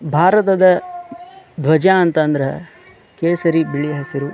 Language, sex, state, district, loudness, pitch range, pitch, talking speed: Kannada, male, Karnataka, Dharwad, -15 LUFS, 150-190 Hz, 170 Hz, 110 wpm